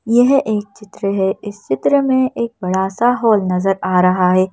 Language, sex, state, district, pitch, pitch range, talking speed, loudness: Hindi, female, Madhya Pradesh, Bhopal, 205 Hz, 185-235 Hz, 200 wpm, -16 LUFS